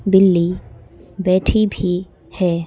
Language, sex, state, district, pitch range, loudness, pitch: Hindi, female, Madhya Pradesh, Bhopal, 170-190 Hz, -17 LUFS, 180 Hz